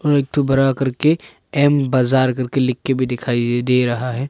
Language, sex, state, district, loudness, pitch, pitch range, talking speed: Hindi, male, Arunachal Pradesh, Papum Pare, -18 LUFS, 130 Hz, 125-140 Hz, 180 wpm